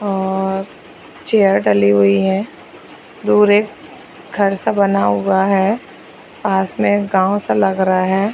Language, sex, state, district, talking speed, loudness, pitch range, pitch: Hindi, female, Chhattisgarh, Raigarh, 150 wpm, -15 LUFS, 190-200 Hz, 195 Hz